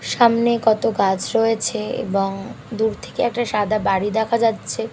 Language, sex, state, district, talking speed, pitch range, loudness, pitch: Bengali, female, Bihar, Katihar, 160 wpm, 200-230 Hz, -20 LUFS, 220 Hz